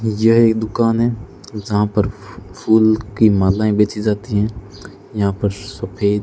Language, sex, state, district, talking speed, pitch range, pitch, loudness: Hindi, male, Rajasthan, Bikaner, 155 wpm, 100-110 Hz, 105 Hz, -17 LUFS